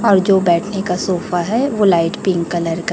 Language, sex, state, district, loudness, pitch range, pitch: Hindi, female, Chhattisgarh, Raipur, -16 LUFS, 170-200 Hz, 185 Hz